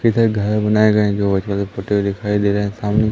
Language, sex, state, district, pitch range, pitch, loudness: Hindi, male, Madhya Pradesh, Umaria, 100-105 Hz, 105 Hz, -17 LUFS